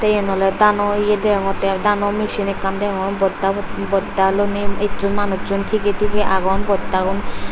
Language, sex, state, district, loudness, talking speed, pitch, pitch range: Chakma, female, Tripura, Dhalai, -19 LUFS, 160 wpm, 200 Hz, 195-205 Hz